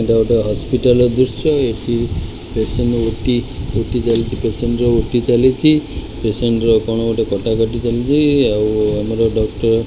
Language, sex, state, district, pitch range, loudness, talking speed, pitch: Odia, male, Odisha, Khordha, 110-120 Hz, -16 LUFS, 140 wpm, 115 Hz